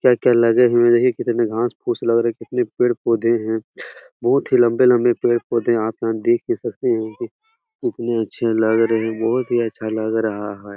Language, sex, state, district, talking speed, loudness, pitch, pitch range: Hindi, male, Bihar, Jahanabad, 200 wpm, -19 LUFS, 120 Hz, 115-125 Hz